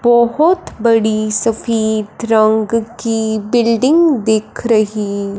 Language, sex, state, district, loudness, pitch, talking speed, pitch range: Hindi, male, Punjab, Fazilka, -14 LUFS, 225 Hz, 90 wpm, 215-235 Hz